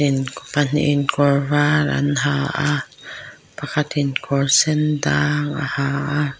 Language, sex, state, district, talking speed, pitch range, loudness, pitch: Mizo, female, Mizoram, Aizawl, 130 wpm, 140-150 Hz, -19 LUFS, 145 Hz